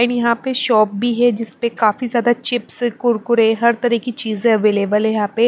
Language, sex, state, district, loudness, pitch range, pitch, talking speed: Hindi, female, Maharashtra, Mumbai Suburban, -17 LUFS, 220-240 Hz, 235 Hz, 195 wpm